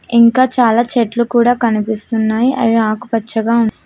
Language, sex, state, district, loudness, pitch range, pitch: Telugu, female, Telangana, Mahabubabad, -14 LUFS, 220-240 Hz, 230 Hz